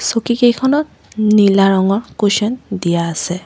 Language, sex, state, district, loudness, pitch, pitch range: Assamese, female, Assam, Sonitpur, -15 LUFS, 210 Hz, 195-240 Hz